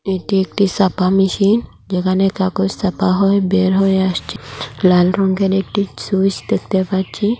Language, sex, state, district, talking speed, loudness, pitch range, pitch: Bengali, female, Assam, Hailakandi, 140 wpm, -16 LUFS, 185-195 Hz, 190 Hz